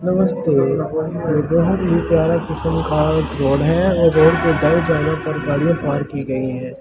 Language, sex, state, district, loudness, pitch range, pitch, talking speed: Hindi, male, Delhi, New Delhi, -17 LUFS, 150-170 Hz, 160 Hz, 175 wpm